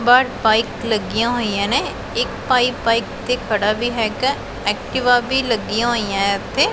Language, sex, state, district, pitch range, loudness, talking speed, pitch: Punjabi, female, Punjab, Pathankot, 220-250 Hz, -18 LUFS, 150 wpm, 235 Hz